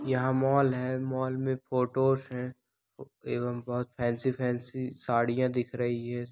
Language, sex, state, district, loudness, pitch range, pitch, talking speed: Hindi, male, Andhra Pradesh, Guntur, -30 LUFS, 120-130 Hz, 125 Hz, 140 wpm